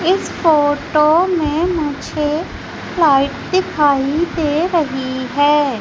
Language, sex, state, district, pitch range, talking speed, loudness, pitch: Hindi, female, Madhya Pradesh, Umaria, 285-335 Hz, 95 wpm, -16 LUFS, 300 Hz